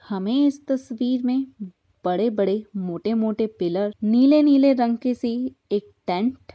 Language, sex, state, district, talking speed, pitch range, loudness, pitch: Hindi, female, Bihar, Jahanabad, 135 wpm, 200-260 Hz, -22 LUFS, 230 Hz